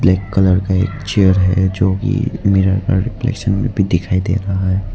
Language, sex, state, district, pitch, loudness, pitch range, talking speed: Hindi, male, Arunachal Pradesh, Lower Dibang Valley, 95 Hz, -16 LUFS, 95-100 Hz, 195 wpm